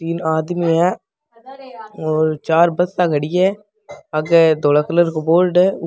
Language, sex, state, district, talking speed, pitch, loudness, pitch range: Rajasthani, male, Rajasthan, Nagaur, 165 wpm, 170 Hz, -16 LUFS, 160-190 Hz